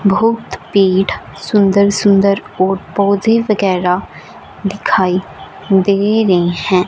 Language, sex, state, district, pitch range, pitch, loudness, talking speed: Hindi, female, Punjab, Fazilka, 185-200 Hz, 195 Hz, -14 LUFS, 95 wpm